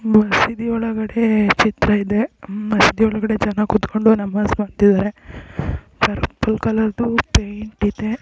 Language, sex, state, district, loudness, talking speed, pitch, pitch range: Kannada, female, Karnataka, Raichur, -18 LUFS, 125 wpm, 215 Hz, 210-220 Hz